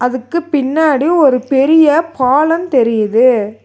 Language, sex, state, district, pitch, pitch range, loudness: Tamil, female, Tamil Nadu, Nilgiris, 275 Hz, 250-315 Hz, -12 LUFS